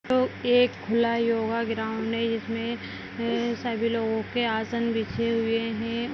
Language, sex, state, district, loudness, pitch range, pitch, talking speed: Kumaoni, female, Uttarakhand, Tehri Garhwal, -26 LUFS, 225-235 Hz, 230 Hz, 145 wpm